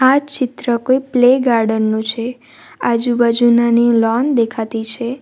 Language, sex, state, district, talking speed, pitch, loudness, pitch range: Gujarati, female, Gujarat, Valsad, 140 wpm, 235 Hz, -15 LUFS, 230-255 Hz